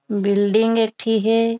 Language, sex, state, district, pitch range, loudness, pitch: Chhattisgarhi, female, Chhattisgarh, Raigarh, 210-225 Hz, -18 LUFS, 225 Hz